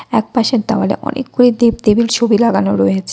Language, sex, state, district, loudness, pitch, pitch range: Bengali, female, West Bengal, Cooch Behar, -14 LUFS, 230 Hz, 195-240 Hz